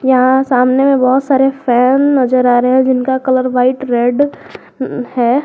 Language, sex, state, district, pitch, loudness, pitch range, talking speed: Hindi, female, Jharkhand, Garhwa, 260 Hz, -12 LUFS, 250-265 Hz, 165 wpm